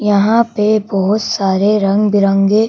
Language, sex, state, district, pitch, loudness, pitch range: Hindi, female, Madhya Pradesh, Bhopal, 205 Hz, -13 LUFS, 195-215 Hz